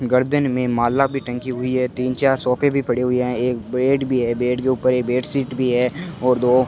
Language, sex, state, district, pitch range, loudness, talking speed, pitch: Hindi, male, Rajasthan, Bikaner, 125-130 Hz, -20 LUFS, 240 wpm, 125 Hz